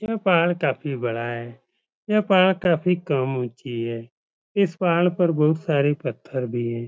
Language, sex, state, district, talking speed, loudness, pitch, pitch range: Hindi, male, Uttar Pradesh, Etah, 165 wpm, -22 LUFS, 150 Hz, 125-180 Hz